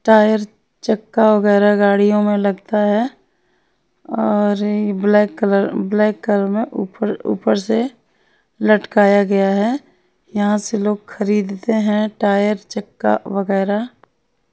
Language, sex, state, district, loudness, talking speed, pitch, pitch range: Hindi, female, Odisha, Nuapada, -17 LUFS, 105 wpm, 210 Hz, 200-215 Hz